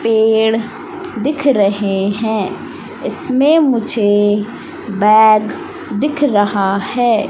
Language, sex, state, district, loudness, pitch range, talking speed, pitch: Hindi, female, Madhya Pradesh, Katni, -14 LUFS, 205-270 Hz, 80 wpm, 220 Hz